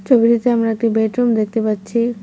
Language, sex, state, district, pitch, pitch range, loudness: Bengali, female, West Bengal, Cooch Behar, 230 Hz, 220-235 Hz, -17 LUFS